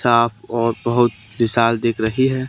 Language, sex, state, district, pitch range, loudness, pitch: Hindi, male, Haryana, Charkhi Dadri, 115-120 Hz, -18 LUFS, 115 Hz